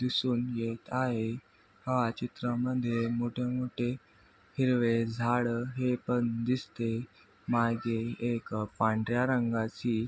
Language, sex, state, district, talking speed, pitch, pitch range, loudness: Marathi, male, Maharashtra, Aurangabad, 95 wpm, 120 Hz, 115-125 Hz, -31 LUFS